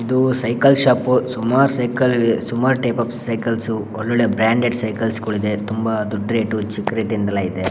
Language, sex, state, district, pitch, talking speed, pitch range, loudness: Kannada, male, Karnataka, Shimoga, 115 Hz, 185 wpm, 110-125 Hz, -19 LUFS